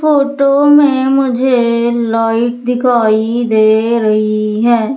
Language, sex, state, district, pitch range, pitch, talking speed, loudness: Hindi, female, Madhya Pradesh, Umaria, 225-265 Hz, 235 Hz, 95 wpm, -12 LUFS